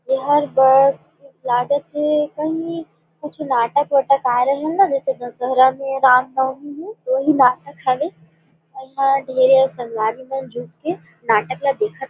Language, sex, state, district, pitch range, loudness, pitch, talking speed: Surgujia, female, Chhattisgarh, Sarguja, 255-290 Hz, -18 LUFS, 270 Hz, 150 wpm